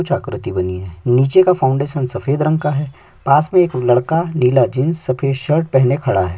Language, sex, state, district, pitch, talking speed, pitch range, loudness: Hindi, male, Chhattisgarh, Sukma, 135 Hz, 205 wpm, 125-155 Hz, -16 LUFS